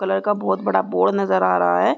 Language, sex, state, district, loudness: Hindi, female, Chhattisgarh, Raigarh, -19 LUFS